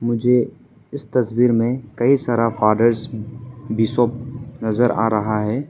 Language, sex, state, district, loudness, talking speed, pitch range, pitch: Hindi, male, Arunachal Pradesh, Papum Pare, -19 LUFS, 125 wpm, 110-125 Hz, 120 Hz